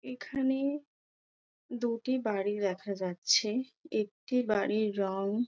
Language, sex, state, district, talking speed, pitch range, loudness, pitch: Bengali, female, West Bengal, Dakshin Dinajpur, 85 wpm, 200-255 Hz, -32 LUFS, 220 Hz